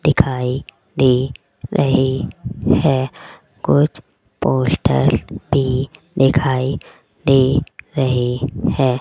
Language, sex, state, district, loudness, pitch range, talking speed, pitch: Hindi, female, Rajasthan, Jaipur, -18 LUFS, 130-140 Hz, 75 wpm, 135 Hz